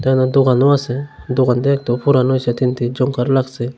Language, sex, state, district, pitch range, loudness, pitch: Bengali, male, Tripura, Unakoti, 125-135 Hz, -16 LUFS, 130 Hz